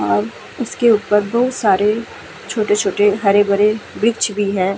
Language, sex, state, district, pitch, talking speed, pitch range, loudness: Hindi, female, Uttar Pradesh, Muzaffarnagar, 205 Hz, 125 wpm, 200-220 Hz, -16 LUFS